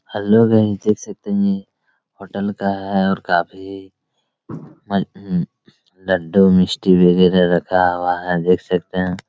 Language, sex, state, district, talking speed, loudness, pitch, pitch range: Hindi, male, Chhattisgarh, Raigarh, 135 wpm, -17 LUFS, 95 Hz, 90-105 Hz